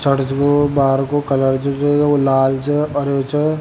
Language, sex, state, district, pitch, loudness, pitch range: Rajasthani, male, Rajasthan, Churu, 140 Hz, -16 LUFS, 135-145 Hz